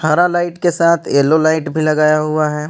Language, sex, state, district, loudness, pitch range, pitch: Hindi, male, Jharkhand, Ranchi, -14 LUFS, 155-170 Hz, 155 Hz